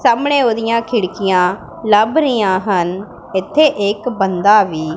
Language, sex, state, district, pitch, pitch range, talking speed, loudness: Punjabi, female, Punjab, Pathankot, 200 Hz, 185-230 Hz, 120 wpm, -15 LUFS